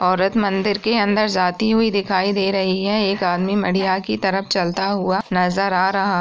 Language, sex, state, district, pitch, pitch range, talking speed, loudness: Hindi, female, Bihar, Purnia, 195 Hz, 185-200 Hz, 205 wpm, -19 LUFS